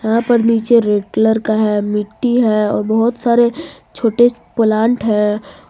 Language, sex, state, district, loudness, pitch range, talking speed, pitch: Hindi, female, Jharkhand, Garhwa, -15 LUFS, 215-235 Hz, 160 wpm, 225 Hz